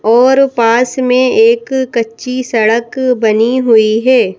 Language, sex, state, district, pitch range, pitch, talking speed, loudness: Hindi, female, Madhya Pradesh, Bhopal, 225-255 Hz, 240 Hz, 125 wpm, -11 LUFS